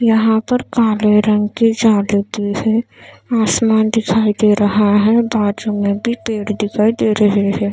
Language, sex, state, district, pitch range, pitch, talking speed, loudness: Hindi, female, Maharashtra, Mumbai Suburban, 205-225 Hz, 215 Hz, 165 wpm, -15 LUFS